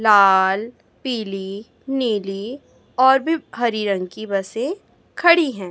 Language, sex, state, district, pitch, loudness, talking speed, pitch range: Hindi, female, Chhattisgarh, Raipur, 220 Hz, -19 LUFS, 115 wpm, 195-265 Hz